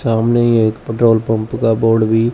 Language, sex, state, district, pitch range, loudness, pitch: Hindi, male, Chandigarh, Chandigarh, 110-115 Hz, -14 LUFS, 115 Hz